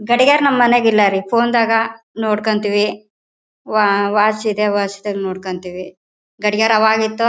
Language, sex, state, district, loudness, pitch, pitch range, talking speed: Kannada, female, Karnataka, Bellary, -16 LUFS, 215 Hz, 205-225 Hz, 125 wpm